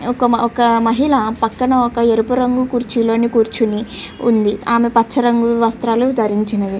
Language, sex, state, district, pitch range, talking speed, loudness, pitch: Telugu, female, Andhra Pradesh, Chittoor, 225-245 Hz, 150 wpm, -15 LUFS, 235 Hz